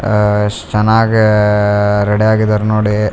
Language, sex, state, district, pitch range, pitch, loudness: Kannada, male, Karnataka, Raichur, 105-110 Hz, 105 Hz, -12 LUFS